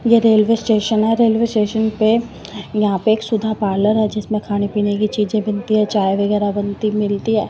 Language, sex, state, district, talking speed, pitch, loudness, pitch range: Hindi, female, Punjab, Pathankot, 200 wpm, 215 Hz, -17 LUFS, 205-220 Hz